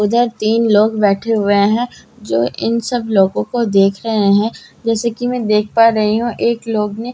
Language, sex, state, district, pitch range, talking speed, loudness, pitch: Hindi, female, Bihar, Katihar, 205-230 Hz, 220 wpm, -15 LUFS, 220 Hz